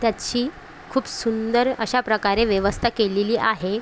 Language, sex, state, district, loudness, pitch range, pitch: Marathi, female, Maharashtra, Chandrapur, -22 LUFS, 210-240 Hz, 225 Hz